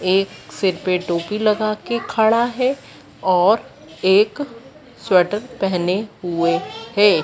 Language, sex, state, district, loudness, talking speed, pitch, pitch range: Hindi, female, Madhya Pradesh, Dhar, -19 LUFS, 115 wpm, 210 Hz, 185-225 Hz